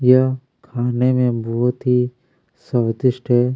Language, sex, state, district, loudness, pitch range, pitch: Hindi, male, Chhattisgarh, Kabirdham, -19 LUFS, 120-130 Hz, 125 Hz